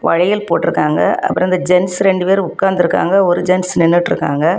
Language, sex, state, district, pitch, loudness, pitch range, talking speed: Tamil, female, Tamil Nadu, Kanyakumari, 180 Hz, -14 LUFS, 175-195 Hz, 145 wpm